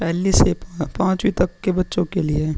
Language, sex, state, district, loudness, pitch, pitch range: Hindi, male, Uttar Pradesh, Muzaffarnagar, -20 LUFS, 175 Hz, 155-185 Hz